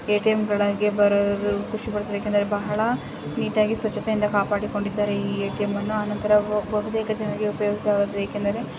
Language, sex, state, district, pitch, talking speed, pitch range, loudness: Kannada, female, Karnataka, Chamarajanagar, 210 Hz, 145 wpm, 205-215 Hz, -24 LUFS